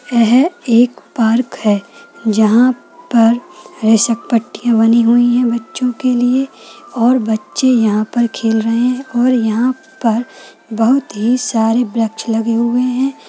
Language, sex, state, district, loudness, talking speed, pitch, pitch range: Hindi, female, Bihar, Kishanganj, -14 LUFS, 135 wpm, 235 Hz, 225-255 Hz